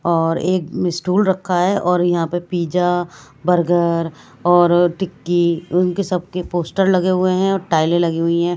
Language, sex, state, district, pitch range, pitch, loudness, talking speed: Hindi, female, Bihar, Katihar, 170-180 Hz, 175 Hz, -17 LUFS, 160 wpm